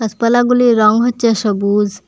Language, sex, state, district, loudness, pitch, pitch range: Bengali, female, Assam, Hailakandi, -13 LUFS, 225 Hz, 210-240 Hz